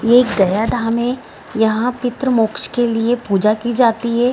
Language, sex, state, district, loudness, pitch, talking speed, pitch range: Hindi, female, Bihar, Gaya, -16 LUFS, 235 Hz, 195 wpm, 220-245 Hz